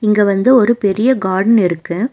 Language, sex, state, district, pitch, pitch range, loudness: Tamil, female, Tamil Nadu, Nilgiris, 210 Hz, 190-235 Hz, -13 LUFS